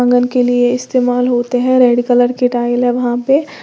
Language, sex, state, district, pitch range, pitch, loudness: Hindi, female, Uttar Pradesh, Lalitpur, 245-250 Hz, 245 Hz, -13 LUFS